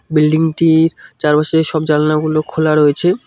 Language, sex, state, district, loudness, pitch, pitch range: Bengali, male, West Bengal, Cooch Behar, -14 LUFS, 155 Hz, 155-160 Hz